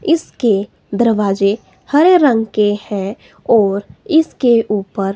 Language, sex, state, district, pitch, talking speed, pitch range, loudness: Hindi, female, Himachal Pradesh, Shimla, 215 Hz, 105 wpm, 200-255 Hz, -15 LUFS